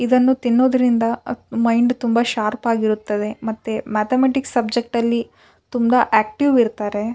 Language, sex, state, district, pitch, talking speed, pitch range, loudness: Kannada, female, Karnataka, Bijapur, 235 Hz, 110 wpm, 220-245 Hz, -19 LUFS